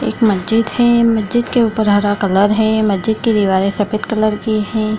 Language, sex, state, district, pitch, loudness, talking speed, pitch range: Hindi, female, Bihar, Kishanganj, 215 Hz, -15 LUFS, 195 wpm, 205-225 Hz